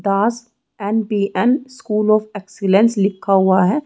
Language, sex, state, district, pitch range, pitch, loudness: Hindi, female, Chhattisgarh, Rajnandgaon, 195-225 Hz, 210 Hz, -17 LUFS